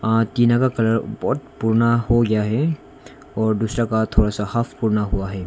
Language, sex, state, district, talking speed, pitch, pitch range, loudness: Hindi, male, Arunachal Pradesh, Longding, 195 wpm, 110 Hz, 110-120 Hz, -20 LUFS